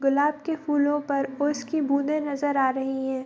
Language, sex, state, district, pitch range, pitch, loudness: Hindi, female, Bihar, Madhepura, 270-295 Hz, 285 Hz, -25 LUFS